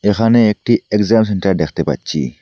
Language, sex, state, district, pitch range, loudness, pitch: Bengali, male, Assam, Hailakandi, 95-115 Hz, -15 LUFS, 105 Hz